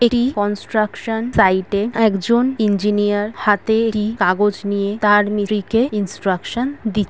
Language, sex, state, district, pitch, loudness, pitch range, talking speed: Bengali, female, West Bengal, Kolkata, 210 Hz, -18 LUFS, 205-225 Hz, 110 wpm